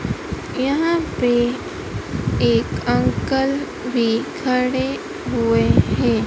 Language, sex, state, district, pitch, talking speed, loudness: Hindi, female, Madhya Pradesh, Dhar, 245 Hz, 75 wpm, -20 LUFS